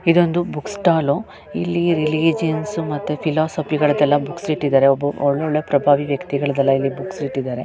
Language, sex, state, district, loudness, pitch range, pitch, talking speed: Kannada, male, Karnataka, Chamarajanagar, -19 LUFS, 140-165 Hz, 150 Hz, 120 wpm